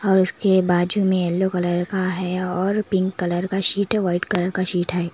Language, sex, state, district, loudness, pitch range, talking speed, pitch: Hindi, female, Karnataka, Koppal, -20 LUFS, 180-190 Hz, 210 wpm, 185 Hz